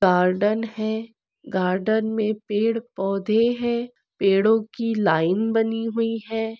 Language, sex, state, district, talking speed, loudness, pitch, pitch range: Hindi, female, Maharashtra, Aurangabad, 120 wpm, -23 LUFS, 220 Hz, 200-225 Hz